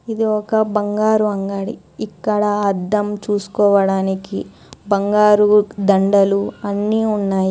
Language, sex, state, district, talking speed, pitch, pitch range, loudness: Telugu, female, Telangana, Hyderabad, 90 wpm, 205 Hz, 200-210 Hz, -17 LUFS